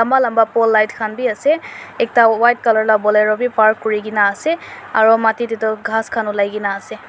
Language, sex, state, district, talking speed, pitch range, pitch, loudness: Nagamese, female, Nagaland, Dimapur, 195 wpm, 215-235 Hz, 225 Hz, -16 LUFS